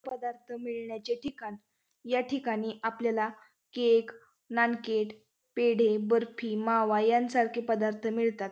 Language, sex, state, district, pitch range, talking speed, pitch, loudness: Marathi, female, Maharashtra, Pune, 220-240 Hz, 100 wpm, 230 Hz, -30 LUFS